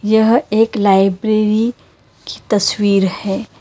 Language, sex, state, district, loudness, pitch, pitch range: Hindi, female, Karnataka, Bangalore, -15 LUFS, 210 Hz, 195-220 Hz